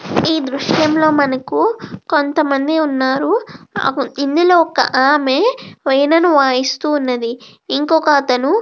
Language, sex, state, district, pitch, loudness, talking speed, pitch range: Telugu, female, Andhra Pradesh, Krishna, 290 Hz, -15 LUFS, 95 wpm, 265-320 Hz